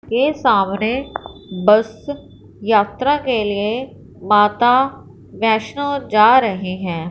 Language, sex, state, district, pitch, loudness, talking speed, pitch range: Hindi, female, Punjab, Fazilka, 220 Hz, -17 LUFS, 95 wpm, 205-260 Hz